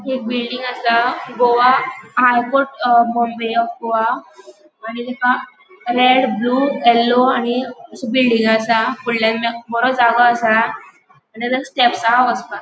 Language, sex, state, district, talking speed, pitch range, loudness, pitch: Konkani, female, Goa, North and South Goa, 130 wpm, 235-255 Hz, -16 LUFS, 245 Hz